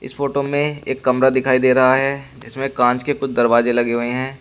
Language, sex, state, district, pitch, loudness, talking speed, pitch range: Hindi, male, Uttar Pradesh, Shamli, 130 Hz, -17 LUFS, 220 wpm, 125-135 Hz